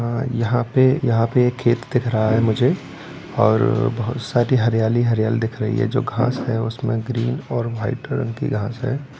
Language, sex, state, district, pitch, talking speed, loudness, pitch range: Hindi, male, Bihar, Gopalganj, 120 Hz, 195 wpm, -20 LUFS, 115-130 Hz